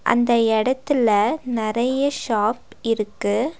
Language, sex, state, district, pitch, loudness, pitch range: Tamil, female, Tamil Nadu, Nilgiris, 235 Hz, -21 LUFS, 215-255 Hz